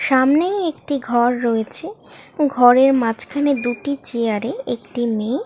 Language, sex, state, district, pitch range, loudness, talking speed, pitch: Bengali, female, West Bengal, North 24 Parganas, 240-285 Hz, -18 LUFS, 110 wpm, 250 Hz